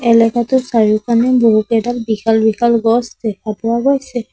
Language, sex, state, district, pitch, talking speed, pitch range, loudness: Assamese, female, Assam, Sonitpur, 230 Hz, 125 wpm, 220-240 Hz, -14 LUFS